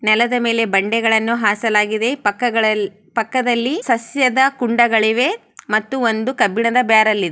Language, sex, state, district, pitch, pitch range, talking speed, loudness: Kannada, female, Karnataka, Chamarajanagar, 230 Hz, 215-245 Hz, 115 wpm, -16 LUFS